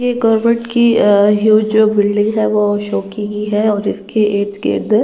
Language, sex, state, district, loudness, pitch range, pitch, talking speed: Hindi, female, Delhi, New Delhi, -14 LUFS, 205-220 Hz, 215 Hz, 205 wpm